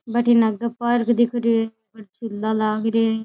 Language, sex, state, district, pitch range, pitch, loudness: Rajasthani, female, Rajasthan, Nagaur, 220-235 Hz, 225 Hz, -20 LUFS